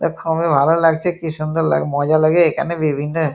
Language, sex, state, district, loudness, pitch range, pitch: Bengali, male, West Bengal, Kolkata, -17 LUFS, 155-165 Hz, 160 Hz